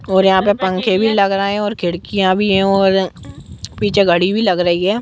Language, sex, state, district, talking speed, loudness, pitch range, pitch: Hindi, female, Jharkhand, Jamtara, 225 wpm, -15 LUFS, 185-205 Hz, 195 Hz